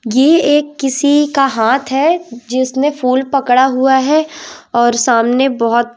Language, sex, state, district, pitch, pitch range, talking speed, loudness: Hindi, female, Madhya Pradesh, Umaria, 265 Hz, 240-290 Hz, 140 wpm, -13 LUFS